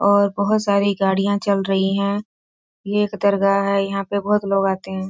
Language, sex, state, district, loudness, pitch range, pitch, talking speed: Hindi, female, Bihar, Sitamarhi, -19 LUFS, 195-200 Hz, 200 Hz, 200 wpm